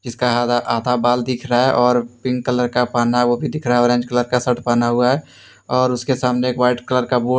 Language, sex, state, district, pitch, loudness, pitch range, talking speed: Hindi, male, Jharkhand, Deoghar, 125 Hz, -18 LUFS, 120-125 Hz, 250 wpm